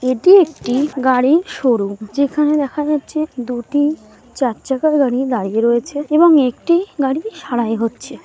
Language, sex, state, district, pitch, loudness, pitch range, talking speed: Bengali, female, West Bengal, Jalpaiguri, 270 Hz, -16 LUFS, 245-300 Hz, 130 wpm